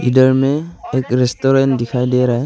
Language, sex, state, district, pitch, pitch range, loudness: Hindi, male, Arunachal Pradesh, Longding, 130 Hz, 125-135 Hz, -15 LUFS